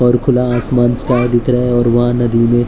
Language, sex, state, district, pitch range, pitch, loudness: Hindi, male, Maharashtra, Mumbai Suburban, 120-125 Hz, 120 Hz, -13 LUFS